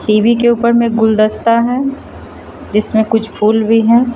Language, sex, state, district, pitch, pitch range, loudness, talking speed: Hindi, female, Bihar, Katihar, 225 Hz, 220-235 Hz, -12 LUFS, 160 wpm